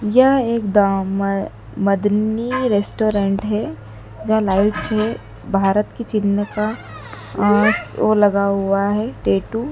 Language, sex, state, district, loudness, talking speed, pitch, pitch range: Hindi, female, Madhya Pradesh, Dhar, -18 LUFS, 115 wpm, 205 Hz, 195-215 Hz